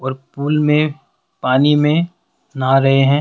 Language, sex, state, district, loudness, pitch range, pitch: Hindi, male, Rajasthan, Jaipur, -16 LUFS, 135-150 Hz, 145 Hz